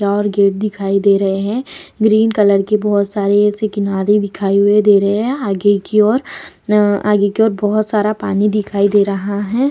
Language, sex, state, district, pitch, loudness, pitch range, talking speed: Hindi, female, Bihar, Vaishali, 205 Hz, -14 LUFS, 200-210 Hz, 200 wpm